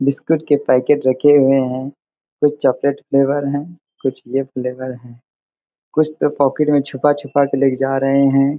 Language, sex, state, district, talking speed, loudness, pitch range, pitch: Hindi, male, Bihar, Bhagalpur, 175 wpm, -17 LUFS, 130-145 Hz, 140 Hz